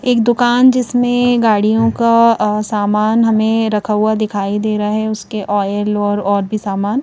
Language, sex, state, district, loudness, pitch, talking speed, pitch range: Hindi, female, Madhya Pradesh, Bhopal, -14 LUFS, 215 Hz, 170 wpm, 210-230 Hz